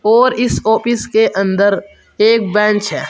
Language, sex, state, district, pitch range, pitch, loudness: Hindi, male, Uttar Pradesh, Saharanpur, 200-230 Hz, 220 Hz, -14 LUFS